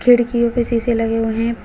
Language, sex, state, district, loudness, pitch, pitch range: Hindi, female, Uttar Pradesh, Shamli, -17 LUFS, 235 Hz, 225-240 Hz